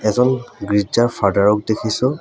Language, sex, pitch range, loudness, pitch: Assamese, male, 105-120 Hz, -17 LUFS, 110 Hz